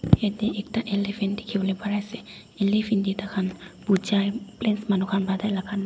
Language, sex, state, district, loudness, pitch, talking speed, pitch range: Nagamese, female, Nagaland, Dimapur, -26 LUFS, 200 Hz, 185 wpm, 195-210 Hz